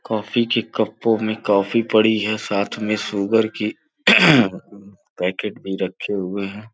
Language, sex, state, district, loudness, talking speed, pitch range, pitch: Hindi, male, Uttar Pradesh, Gorakhpur, -19 LUFS, 140 wpm, 100-110 Hz, 105 Hz